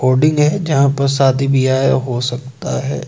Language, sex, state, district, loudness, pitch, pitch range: Hindi, male, Madhya Pradesh, Bhopal, -15 LUFS, 135 Hz, 130-140 Hz